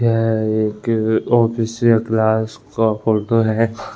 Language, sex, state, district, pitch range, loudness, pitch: Hindi, male, Chhattisgarh, Balrampur, 110-115 Hz, -17 LUFS, 110 Hz